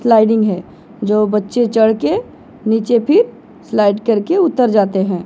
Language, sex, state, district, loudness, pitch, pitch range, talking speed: Hindi, female, Odisha, Sambalpur, -15 LUFS, 220 Hz, 205-235 Hz, 150 wpm